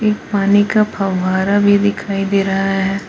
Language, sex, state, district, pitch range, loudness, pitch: Hindi, female, Jharkhand, Palamu, 195-205 Hz, -15 LUFS, 200 Hz